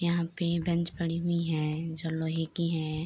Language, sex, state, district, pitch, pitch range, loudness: Hindi, female, Bihar, Darbhanga, 165 Hz, 160-170 Hz, -31 LUFS